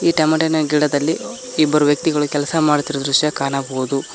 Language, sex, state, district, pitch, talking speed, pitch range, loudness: Kannada, male, Karnataka, Koppal, 150 Hz, 130 wpm, 145-160 Hz, -18 LUFS